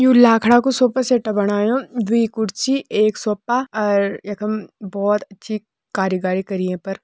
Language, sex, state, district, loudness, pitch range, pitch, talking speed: Kumaoni, female, Uttarakhand, Tehri Garhwal, -19 LUFS, 200-240 Hz, 215 Hz, 155 wpm